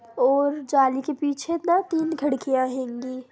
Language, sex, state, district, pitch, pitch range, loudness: Hindi, female, Bihar, Sitamarhi, 275 Hz, 260-305 Hz, -24 LUFS